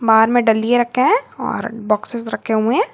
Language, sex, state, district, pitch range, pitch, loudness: Hindi, female, Jharkhand, Garhwa, 220-245 Hz, 235 Hz, -17 LUFS